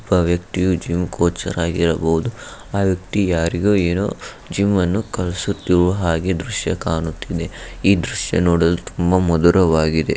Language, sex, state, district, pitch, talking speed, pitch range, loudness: Kannada, male, Karnataka, Shimoga, 90 Hz, 120 wpm, 85-95 Hz, -19 LUFS